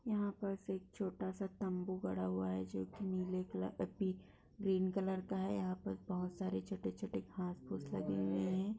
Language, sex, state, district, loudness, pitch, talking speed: Hindi, female, Bihar, Kishanganj, -41 LUFS, 185 Hz, 175 wpm